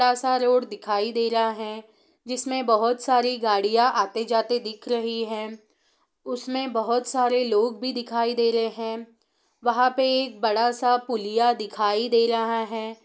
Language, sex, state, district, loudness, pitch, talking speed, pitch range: Hindi, female, Bihar, East Champaran, -24 LUFS, 230 Hz, 155 wpm, 225-245 Hz